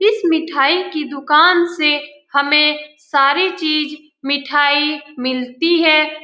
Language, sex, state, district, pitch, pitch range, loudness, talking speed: Hindi, female, Bihar, Lakhisarai, 300 Hz, 285-320 Hz, -15 LUFS, 115 wpm